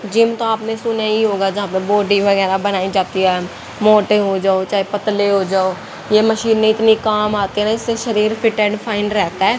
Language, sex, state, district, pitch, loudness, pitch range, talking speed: Hindi, female, Haryana, Jhajjar, 210 Hz, -16 LUFS, 195-220 Hz, 210 wpm